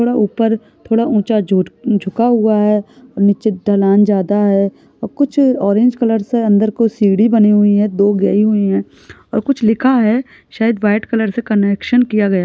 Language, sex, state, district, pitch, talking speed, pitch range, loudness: Hindi, female, Chhattisgarh, Balrampur, 215 Hz, 180 wpm, 200-230 Hz, -14 LUFS